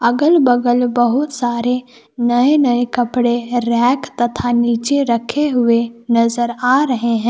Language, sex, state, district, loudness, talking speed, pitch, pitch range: Hindi, female, Jharkhand, Palamu, -15 LUFS, 130 wpm, 240 Hz, 235-250 Hz